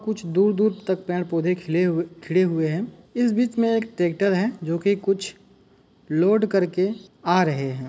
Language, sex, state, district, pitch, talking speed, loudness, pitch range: Hindi, male, Uttar Pradesh, Muzaffarnagar, 185 Hz, 180 wpm, -23 LUFS, 170-210 Hz